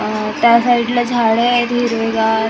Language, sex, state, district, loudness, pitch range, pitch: Marathi, female, Maharashtra, Gondia, -14 LUFS, 225-240 Hz, 235 Hz